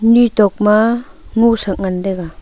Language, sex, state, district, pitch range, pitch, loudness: Wancho, female, Arunachal Pradesh, Longding, 195-230 Hz, 215 Hz, -14 LUFS